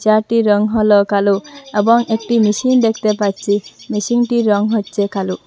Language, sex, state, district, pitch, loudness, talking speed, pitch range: Bengali, female, Assam, Hailakandi, 215 Hz, -15 LUFS, 140 wpm, 205-230 Hz